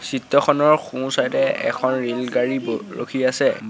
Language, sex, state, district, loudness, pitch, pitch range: Assamese, male, Assam, Sonitpur, -20 LUFS, 130 Hz, 125-145 Hz